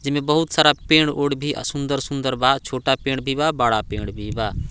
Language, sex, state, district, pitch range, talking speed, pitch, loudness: Bhojpuri, male, Bihar, Muzaffarpur, 125-145 Hz, 215 wpm, 135 Hz, -20 LUFS